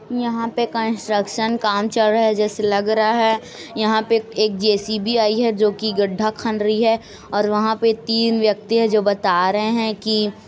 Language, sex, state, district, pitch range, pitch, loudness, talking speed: Hindi, female, Chhattisgarh, Kabirdham, 210-225 Hz, 220 Hz, -19 LUFS, 195 wpm